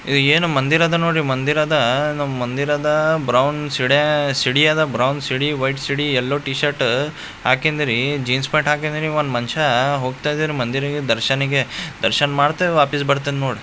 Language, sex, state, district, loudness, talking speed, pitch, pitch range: Kannada, male, Karnataka, Gulbarga, -18 LUFS, 145 wpm, 145 Hz, 135-150 Hz